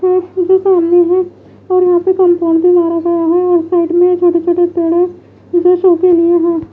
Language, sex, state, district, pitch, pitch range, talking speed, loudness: Hindi, female, Bihar, West Champaran, 350 Hz, 340-360 Hz, 205 wpm, -11 LUFS